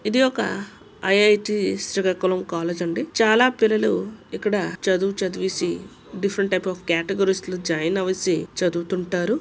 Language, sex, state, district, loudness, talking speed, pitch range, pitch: Telugu, female, Andhra Pradesh, Srikakulam, -22 LUFS, 120 wpm, 185-210 Hz, 190 Hz